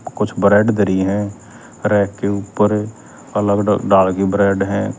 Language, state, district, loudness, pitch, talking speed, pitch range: Haryanvi, Haryana, Rohtak, -16 LUFS, 100 Hz, 155 wpm, 100-105 Hz